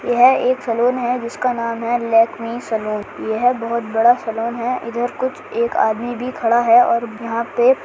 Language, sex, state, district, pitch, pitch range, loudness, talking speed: Hindi, male, Bihar, Bhagalpur, 235 Hz, 230-250 Hz, -18 LUFS, 190 wpm